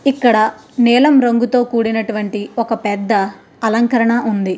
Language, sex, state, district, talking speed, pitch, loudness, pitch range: Telugu, female, Andhra Pradesh, Krishna, 120 wpm, 230 Hz, -15 LUFS, 215-240 Hz